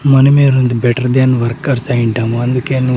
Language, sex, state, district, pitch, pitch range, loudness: Telugu, male, Andhra Pradesh, Sri Satya Sai, 125 Hz, 120-135 Hz, -12 LUFS